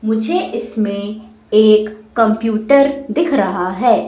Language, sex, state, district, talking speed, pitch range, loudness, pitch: Hindi, female, Madhya Pradesh, Katni, 105 wpm, 215-245 Hz, -15 LUFS, 220 Hz